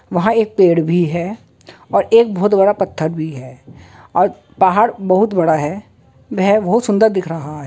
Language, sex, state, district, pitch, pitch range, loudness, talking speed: Hindi, female, Uttar Pradesh, Jalaun, 185 Hz, 160-205 Hz, -15 LUFS, 180 wpm